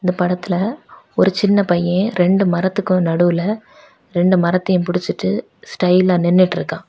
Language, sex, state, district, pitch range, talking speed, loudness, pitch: Tamil, female, Tamil Nadu, Kanyakumari, 175-190 Hz, 120 wpm, -17 LUFS, 180 Hz